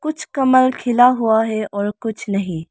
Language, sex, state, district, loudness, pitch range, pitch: Hindi, female, Arunachal Pradesh, Lower Dibang Valley, -17 LUFS, 205-255 Hz, 225 Hz